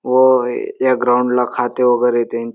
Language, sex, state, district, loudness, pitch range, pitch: Marathi, male, Maharashtra, Dhule, -15 LUFS, 120-125 Hz, 125 Hz